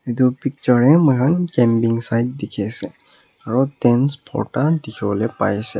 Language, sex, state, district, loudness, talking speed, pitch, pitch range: Nagamese, male, Nagaland, Kohima, -18 LUFS, 155 wpm, 125 Hz, 115-135 Hz